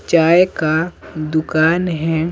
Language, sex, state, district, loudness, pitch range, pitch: Hindi, male, Bihar, Patna, -16 LUFS, 155-170 Hz, 160 Hz